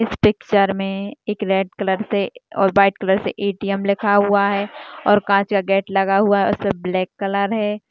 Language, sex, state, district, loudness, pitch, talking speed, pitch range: Hindi, female, Chhattisgarh, Jashpur, -19 LUFS, 200 Hz, 195 wpm, 195-205 Hz